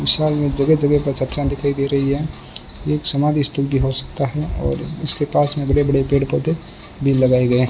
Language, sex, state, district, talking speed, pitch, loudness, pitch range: Hindi, male, Rajasthan, Bikaner, 220 wpm, 140 Hz, -18 LUFS, 135-150 Hz